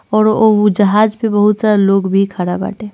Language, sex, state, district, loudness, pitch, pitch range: Hindi, female, Bihar, East Champaran, -13 LUFS, 210 Hz, 195-215 Hz